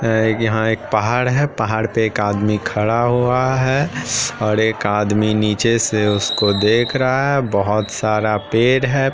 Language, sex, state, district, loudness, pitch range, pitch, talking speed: Hindi, male, Bihar, Purnia, -17 LUFS, 105-125 Hz, 110 Hz, 175 wpm